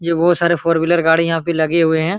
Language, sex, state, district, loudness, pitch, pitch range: Hindi, male, Bihar, Araria, -15 LUFS, 165 Hz, 160-170 Hz